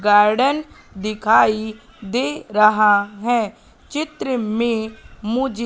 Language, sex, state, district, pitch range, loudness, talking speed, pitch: Hindi, female, Madhya Pradesh, Katni, 210-245 Hz, -19 LUFS, 85 wpm, 220 Hz